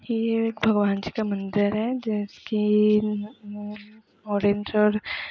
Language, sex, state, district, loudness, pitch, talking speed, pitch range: Hindi, female, Chhattisgarh, Raigarh, -24 LUFS, 210 Hz, 135 wpm, 205-220 Hz